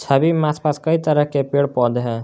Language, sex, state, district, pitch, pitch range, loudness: Hindi, male, Jharkhand, Garhwa, 140 Hz, 130-150 Hz, -18 LUFS